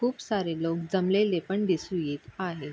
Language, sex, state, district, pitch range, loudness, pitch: Marathi, female, Maharashtra, Sindhudurg, 165-195 Hz, -29 LUFS, 180 Hz